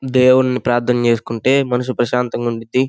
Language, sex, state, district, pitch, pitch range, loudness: Telugu, male, Andhra Pradesh, Guntur, 125 Hz, 120-130 Hz, -16 LUFS